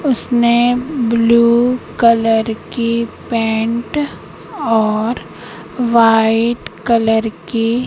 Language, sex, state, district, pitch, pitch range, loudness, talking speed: Hindi, female, Madhya Pradesh, Katni, 235 Hz, 225-240 Hz, -15 LUFS, 70 wpm